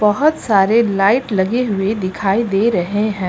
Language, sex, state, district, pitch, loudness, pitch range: Hindi, female, Uttar Pradesh, Lucknow, 205 Hz, -16 LUFS, 195-230 Hz